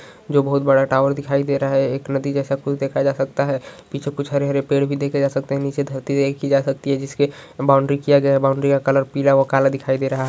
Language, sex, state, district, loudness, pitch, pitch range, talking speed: Hindi, male, Uttar Pradesh, Ghazipur, -19 LUFS, 140 Hz, 135-140 Hz, 270 wpm